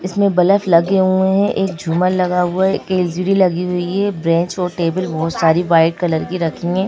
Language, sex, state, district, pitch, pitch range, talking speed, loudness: Hindi, female, Madhya Pradesh, Bhopal, 180 Hz, 170-190 Hz, 220 wpm, -16 LUFS